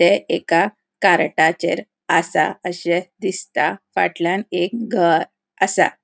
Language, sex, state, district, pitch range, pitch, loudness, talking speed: Konkani, female, Goa, North and South Goa, 175-190 Hz, 180 Hz, -19 LUFS, 100 wpm